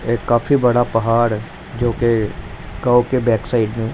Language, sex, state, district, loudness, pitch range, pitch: Hindi, male, Punjab, Pathankot, -17 LUFS, 115-120 Hz, 120 Hz